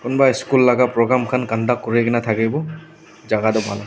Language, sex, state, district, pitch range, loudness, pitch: Nagamese, male, Nagaland, Dimapur, 115-130 Hz, -18 LUFS, 125 Hz